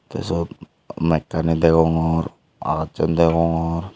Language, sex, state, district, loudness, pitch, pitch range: Chakma, male, Tripura, Unakoti, -20 LUFS, 80 Hz, 80-85 Hz